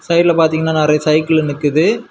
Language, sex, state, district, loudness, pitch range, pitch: Tamil, male, Tamil Nadu, Kanyakumari, -14 LUFS, 150-160 Hz, 160 Hz